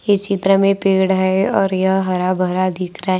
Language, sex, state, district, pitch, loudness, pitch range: Hindi, female, Maharashtra, Gondia, 190 Hz, -16 LUFS, 185-195 Hz